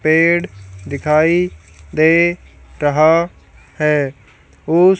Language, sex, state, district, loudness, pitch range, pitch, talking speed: Hindi, female, Haryana, Charkhi Dadri, -15 LUFS, 110-170 Hz, 155 Hz, 70 wpm